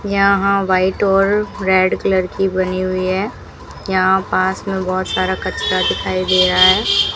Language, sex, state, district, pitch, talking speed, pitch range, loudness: Hindi, female, Rajasthan, Bikaner, 190 Hz, 160 wpm, 185-195 Hz, -16 LUFS